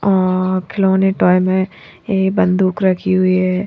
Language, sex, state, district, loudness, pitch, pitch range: Hindi, female, Bihar, Patna, -15 LUFS, 185 Hz, 185-190 Hz